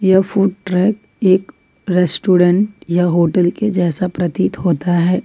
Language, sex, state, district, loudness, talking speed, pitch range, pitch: Hindi, female, Jharkhand, Ranchi, -15 LUFS, 135 wpm, 175-195 Hz, 185 Hz